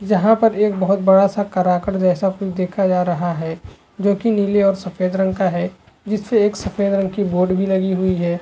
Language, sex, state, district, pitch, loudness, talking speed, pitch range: Hindi, male, Chhattisgarh, Bastar, 190 Hz, -18 LUFS, 215 wpm, 185-200 Hz